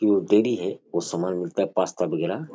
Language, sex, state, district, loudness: Rajasthani, male, Rajasthan, Churu, -24 LUFS